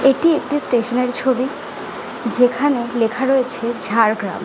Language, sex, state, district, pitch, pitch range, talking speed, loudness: Bengali, female, West Bengal, Jhargram, 250 Hz, 235-265 Hz, 120 wpm, -18 LUFS